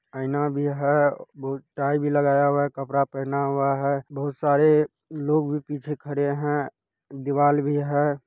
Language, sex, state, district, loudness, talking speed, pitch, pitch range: Hindi, male, Bihar, Purnia, -24 LUFS, 165 wpm, 145 Hz, 140-145 Hz